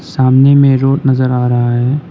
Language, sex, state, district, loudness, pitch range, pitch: Hindi, male, Arunachal Pradesh, Lower Dibang Valley, -11 LUFS, 125-140 Hz, 130 Hz